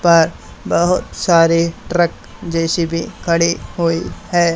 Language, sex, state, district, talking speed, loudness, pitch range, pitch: Hindi, male, Haryana, Charkhi Dadri, 105 wpm, -16 LUFS, 165-175 Hz, 170 Hz